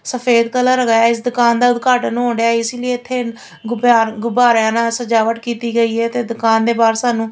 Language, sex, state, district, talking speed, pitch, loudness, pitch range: Punjabi, female, Punjab, Fazilka, 205 wpm, 235 Hz, -15 LUFS, 230-245 Hz